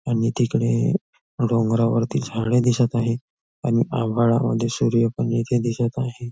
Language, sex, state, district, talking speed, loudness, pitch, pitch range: Marathi, male, Maharashtra, Nagpur, 125 wpm, -22 LUFS, 115 Hz, 115-120 Hz